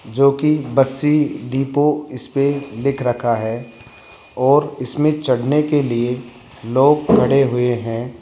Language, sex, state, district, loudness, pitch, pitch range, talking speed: Hindi, male, Rajasthan, Jaipur, -17 LUFS, 135 Hz, 120-145 Hz, 130 wpm